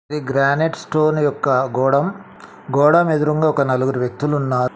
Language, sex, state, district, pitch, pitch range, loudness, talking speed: Telugu, male, Telangana, Mahabubabad, 140 Hz, 130-155 Hz, -18 LUFS, 140 wpm